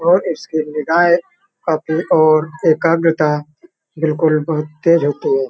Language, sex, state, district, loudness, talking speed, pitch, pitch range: Hindi, male, Uttar Pradesh, Hamirpur, -16 LUFS, 120 wpm, 160 Hz, 155-170 Hz